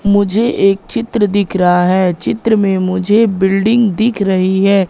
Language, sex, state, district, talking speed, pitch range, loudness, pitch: Hindi, female, Madhya Pradesh, Katni, 160 wpm, 190-220 Hz, -13 LUFS, 195 Hz